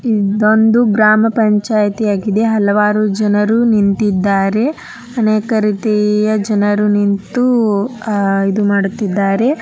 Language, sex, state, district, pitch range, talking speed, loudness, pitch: Kannada, male, Karnataka, Dharwad, 205-220 Hz, 85 wpm, -13 LUFS, 210 Hz